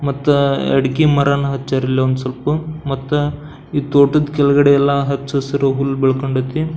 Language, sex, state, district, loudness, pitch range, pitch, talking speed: Kannada, male, Karnataka, Belgaum, -16 LUFS, 135-145 Hz, 140 Hz, 140 wpm